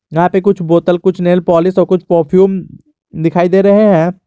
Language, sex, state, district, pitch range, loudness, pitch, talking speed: Hindi, male, Jharkhand, Garhwa, 170-190 Hz, -11 LUFS, 180 Hz, 195 wpm